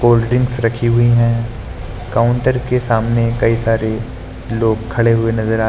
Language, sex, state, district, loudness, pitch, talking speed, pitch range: Hindi, male, Uttar Pradesh, Lucknow, -15 LUFS, 115 Hz, 160 wpm, 110-120 Hz